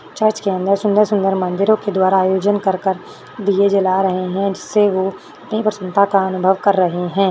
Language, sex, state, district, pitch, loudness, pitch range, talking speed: Hindi, female, Rajasthan, Churu, 195 Hz, -17 LUFS, 190-205 Hz, 180 wpm